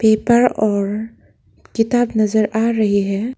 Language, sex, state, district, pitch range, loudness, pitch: Hindi, female, Arunachal Pradesh, Lower Dibang Valley, 210-235 Hz, -17 LUFS, 220 Hz